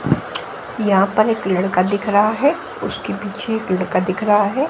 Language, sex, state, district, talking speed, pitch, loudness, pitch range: Hindi, female, Haryana, Jhajjar, 180 wpm, 205 Hz, -18 LUFS, 190-220 Hz